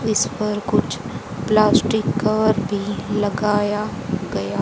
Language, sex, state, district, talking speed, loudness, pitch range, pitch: Hindi, female, Haryana, Charkhi Dadri, 105 wpm, -20 LUFS, 205-215 Hz, 210 Hz